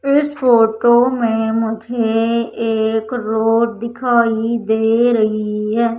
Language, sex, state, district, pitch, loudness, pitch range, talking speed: Hindi, female, Madhya Pradesh, Umaria, 230 Hz, -16 LUFS, 220-235 Hz, 100 wpm